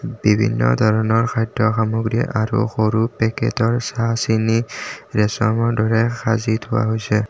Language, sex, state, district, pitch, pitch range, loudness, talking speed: Assamese, male, Assam, Kamrup Metropolitan, 115 Hz, 110-115 Hz, -19 LUFS, 115 wpm